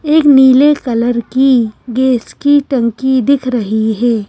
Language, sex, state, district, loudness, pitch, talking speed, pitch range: Hindi, female, Madhya Pradesh, Bhopal, -11 LUFS, 255 Hz, 140 wpm, 235-275 Hz